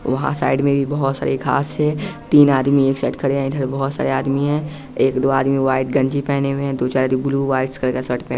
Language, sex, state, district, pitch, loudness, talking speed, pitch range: Hindi, male, Bihar, West Champaran, 135 Hz, -18 LUFS, 250 wpm, 135-140 Hz